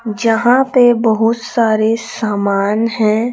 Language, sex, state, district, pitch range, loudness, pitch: Hindi, female, Chhattisgarh, Raipur, 215-240 Hz, -14 LUFS, 225 Hz